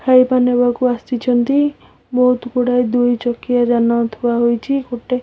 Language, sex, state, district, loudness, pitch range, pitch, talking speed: Odia, female, Odisha, Khordha, -16 LUFS, 240-250 Hz, 245 Hz, 125 wpm